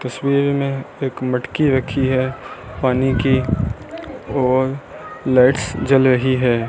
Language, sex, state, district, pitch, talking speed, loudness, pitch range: Hindi, male, Rajasthan, Bikaner, 130 Hz, 115 wpm, -18 LUFS, 125-135 Hz